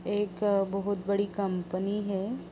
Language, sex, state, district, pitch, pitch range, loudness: Hindi, female, Uttar Pradesh, Jalaun, 200 Hz, 195-205 Hz, -30 LUFS